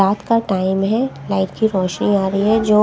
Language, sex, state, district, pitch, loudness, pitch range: Hindi, female, Punjab, Kapurthala, 200 Hz, -18 LUFS, 190-220 Hz